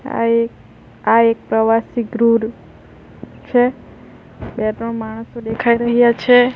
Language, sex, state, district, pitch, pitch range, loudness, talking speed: Gujarati, female, Gujarat, Valsad, 230 Hz, 225-240 Hz, -16 LUFS, 120 wpm